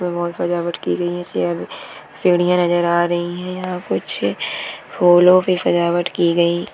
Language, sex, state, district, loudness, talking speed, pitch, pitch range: Hindi, female, West Bengal, Jalpaiguri, -18 LUFS, 170 wpm, 175 Hz, 170-180 Hz